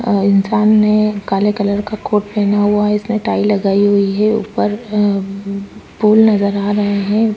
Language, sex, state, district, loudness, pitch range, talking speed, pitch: Hindi, female, Chhattisgarh, Korba, -14 LUFS, 200-215 Hz, 180 wpm, 205 Hz